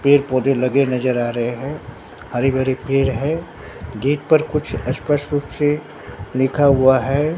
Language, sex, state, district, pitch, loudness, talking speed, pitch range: Hindi, male, Bihar, Katihar, 135 Hz, -19 LUFS, 160 wpm, 125-145 Hz